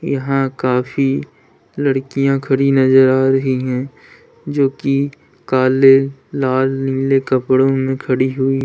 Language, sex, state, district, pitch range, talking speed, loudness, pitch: Hindi, male, Uttar Pradesh, Lalitpur, 130-135 Hz, 120 wpm, -16 LUFS, 135 Hz